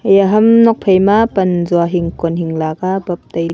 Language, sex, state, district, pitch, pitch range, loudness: Wancho, female, Arunachal Pradesh, Longding, 185 Hz, 170-200 Hz, -13 LUFS